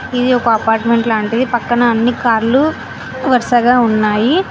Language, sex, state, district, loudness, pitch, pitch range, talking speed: Telugu, female, Telangana, Mahabubabad, -13 LUFS, 240 Hz, 225-250 Hz, 120 wpm